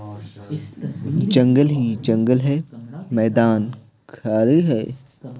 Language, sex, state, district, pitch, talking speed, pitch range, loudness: Hindi, male, Bihar, Patna, 120 Hz, 80 wpm, 110-140 Hz, -19 LUFS